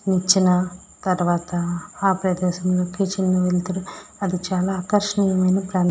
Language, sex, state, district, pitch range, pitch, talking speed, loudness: Telugu, female, Andhra Pradesh, Srikakulam, 180-190 Hz, 185 Hz, 120 wpm, -21 LUFS